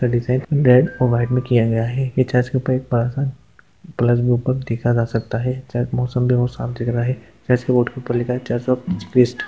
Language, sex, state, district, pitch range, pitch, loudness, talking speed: Hindi, male, Uttar Pradesh, Hamirpur, 120-130 Hz, 125 Hz, -19 LUFS, 255 wpm